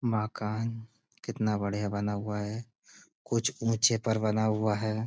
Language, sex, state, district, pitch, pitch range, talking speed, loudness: Hindi, male, Uttar Pradesh, Budaun, 110 Hz, 105-115 Hz, 140 wpm, -30 LUFS